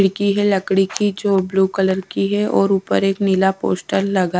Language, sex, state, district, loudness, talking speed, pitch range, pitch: Hindi, female, Bihar, Katihar, -18 LUFS, 205 wpm, 190-200 Hz, 195 Hz